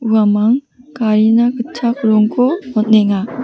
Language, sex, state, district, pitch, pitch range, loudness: Garo, female, Meghalaya, West Garo Hills, 225 Hz, 215-245 Hz, -14 LUFS